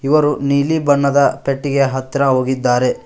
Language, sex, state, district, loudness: Kannada, male, Karnataka, Koppal, -15 LUFS